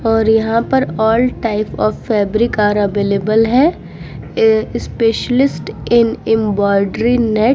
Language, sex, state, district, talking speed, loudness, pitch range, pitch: Hindi, female, Uttar Pradesh, Muzaffarnagar, 120 wpm, -14 LUFS, 210-235 Hz, 225 Hz